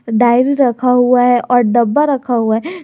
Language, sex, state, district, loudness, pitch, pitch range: Hindi, male, Jharkhand, Garhwa, -13 LUFS, 245 Hz, 240-265 Hz